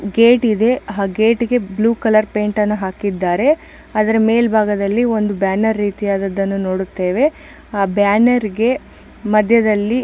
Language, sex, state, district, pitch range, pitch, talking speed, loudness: Kannada, female, Karnataka, Chamarajanagar, 200-230 Hz, 215 Hz, 90 wpm, -16 LUFS